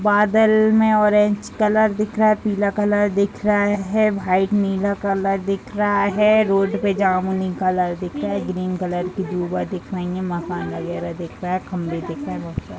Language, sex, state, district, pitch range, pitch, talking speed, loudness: Hindi, female, Bihar, Vaishali, 185-210 Hz, 195 Hz, 195 wpm, -20 LUFS